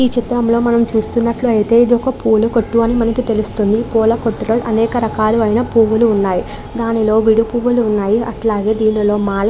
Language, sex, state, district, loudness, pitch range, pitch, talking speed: Telugu, female, Andhra Pradesh, Krishna, -14 LUFS, 220-235 Hz, 225 Hz, 150 wpm